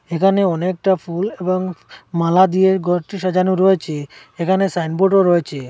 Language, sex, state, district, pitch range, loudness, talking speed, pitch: Bengali, male, Assam, Hailakandi, 170-190 Hz, -17 LUFS, 125 wpm, 185 Hz